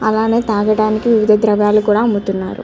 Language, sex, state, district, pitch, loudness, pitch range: Telugu, female, Andhra Pradesh, Chittoor, 215 Hz, -14 LUFS, 210-220 Hz